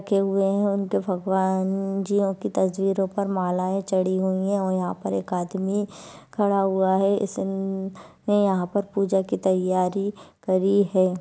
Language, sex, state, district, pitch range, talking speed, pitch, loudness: Hindi, female, Bihar, Kishanganj, 185-200 Hz, 155 wpm, 195 Hz, -24 LUFS